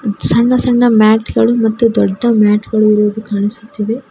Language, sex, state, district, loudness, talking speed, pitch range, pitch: Kannada, female, Karnataka, Koppal, -12 LUFS, 145 wpm, 210-230 Hz, 220 Hz